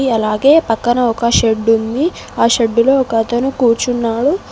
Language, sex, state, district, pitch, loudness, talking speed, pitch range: Telugu, female, Telangana, Mahabubabad, 235 Hz, -14 LUFS, 120 wpm, 225-265 Hz